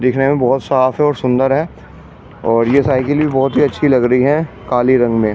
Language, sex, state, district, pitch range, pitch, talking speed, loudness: Hindi, male, Delhi, New Delhi, 125-140 Hz, 130 Hz, 245 wpm, -14 LUFS